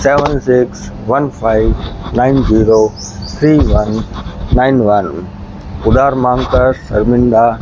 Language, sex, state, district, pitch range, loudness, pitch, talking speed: Hindi, male, Rajasthan, Bikaner, 100-125 Hz, -12 LUFS, 110 Hz, 120 wpm